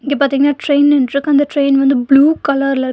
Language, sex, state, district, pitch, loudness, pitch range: Tamil, female, Tamil Nadu, Nilgiris, 280 Hz, -13 LUFS, 275-290 Hz